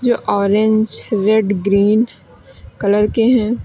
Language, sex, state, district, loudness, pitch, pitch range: Hindi, female, Uttar Pradesh, Lalitpur, -15 LUFS, 215 Hz, 205-225 Hz